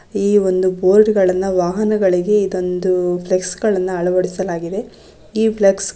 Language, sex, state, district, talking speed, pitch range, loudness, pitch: Kannada, female, Karnataka, Gulbarga, 110 wpm, 185-205 Hz, -16 LUFS, 190 Hz